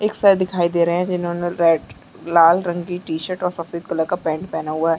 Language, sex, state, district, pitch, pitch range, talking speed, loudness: Hindi, female, Chhattisgarh, Bastar, 170 Hz, 160-180 Hz, 240 wpm, -19 LUFS